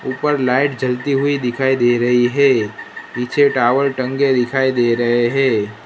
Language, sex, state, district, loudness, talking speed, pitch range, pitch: Hindi, male, Gujarat, Gandhinagar, -16 LUFS, 155 wpm, 120-135 Hz, 130 Hz